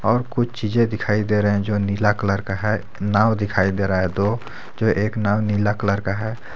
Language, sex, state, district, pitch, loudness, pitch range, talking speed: Hindi, male, Jharkhand, Garhwa, 105 Hz, -21 LUFS, 100-110 Hz, 230 wpm